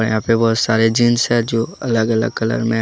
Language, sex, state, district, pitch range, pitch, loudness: Hindi, male, Jharkhand, Deoghar, 110-120 Hz, 115 Hz, -16 LUFS